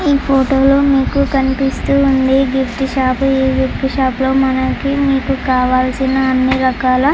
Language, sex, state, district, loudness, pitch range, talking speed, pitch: Telugu, female, Andhra Pradesh, Chittoor, -14 LUFS, 260-270 Hz, 150 wpm, 265 Hz